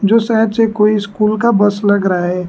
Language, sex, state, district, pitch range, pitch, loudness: Hindi, male, Arunachal Pradesh, Lower Dibang Valley, 200-220 Hz, 210 Hz, -13 LUFS